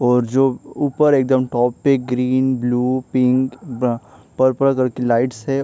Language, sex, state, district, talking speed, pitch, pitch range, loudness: Hindi, male, Maharashtra, Chandrapur, 160 wpm, 130 Hz, 125-135 Hz, -18 LUFS